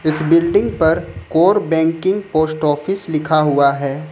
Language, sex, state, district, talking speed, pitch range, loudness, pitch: Hindi, male, Jharkhand, Ranchi, 145 wpm, 155-170 Hz, -16 LUFS, 160 Hz